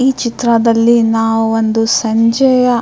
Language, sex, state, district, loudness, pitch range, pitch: Kannada, female, Karnataka, Mysore, -12 LUFS, 225-240 Hz, 230 Hz